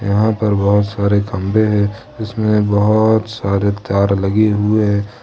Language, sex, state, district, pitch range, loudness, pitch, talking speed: Hindi, male, Jharkhand, Ranchi, 100-110 Hz, -15 LUFS, 105 Hz, 150 wpm